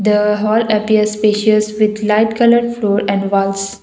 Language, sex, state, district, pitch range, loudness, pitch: English, female, Assam, Kamrup Metropolitan, 205-215 Hz, -14 LUFS, 215 Hz